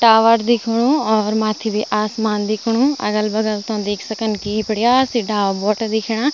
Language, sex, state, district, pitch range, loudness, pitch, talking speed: Garhwali, female, Uttarakhand, Tehri Garhwal, 210-230 Hz, -18 LUFS, 220 Hz, 160 wpm